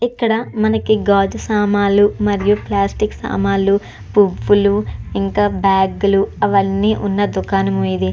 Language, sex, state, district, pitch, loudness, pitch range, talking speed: Telugu, female, Andhra Pradesh, Chittoor, 200 Hz, -16 LUFS, 190-205 Hz, 105 wpm